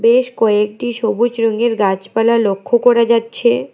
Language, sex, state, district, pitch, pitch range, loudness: Bengali, female, West Bengal, Alipurduar, 235 Hz, 220-240 Hz, -15 LUFS